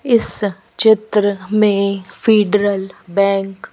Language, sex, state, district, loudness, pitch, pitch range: Hindi, female, Madhya Pradesh, Bhopal, -16 LUFS, 205 Hz, 195-215 Hz